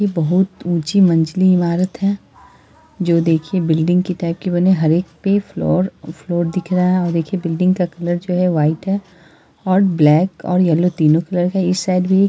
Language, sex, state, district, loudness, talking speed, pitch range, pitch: Hindi, male, Bihar, East Champaran, -17 LUFS, 210 wpm, 170-185 Hz, 180 Hz